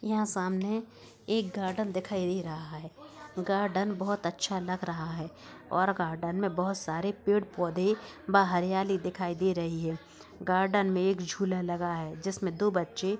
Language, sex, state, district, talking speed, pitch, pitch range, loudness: Hindi, male, Bihar, Bhagalpur, 165 wpm, 190 Hz, 175-200 Hz, -31 LUFS